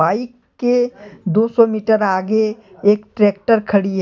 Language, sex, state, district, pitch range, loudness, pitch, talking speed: Hindi, male, Jharkhand, Deoghar, 200-230 Hz, -17 LUFS, 215 Hz, 150 wpm